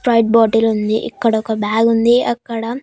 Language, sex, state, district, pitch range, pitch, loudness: Telugu, female, Andhra Pradesh, Annamaya, 220-235 Hz, 230 Hz, -15 LUFS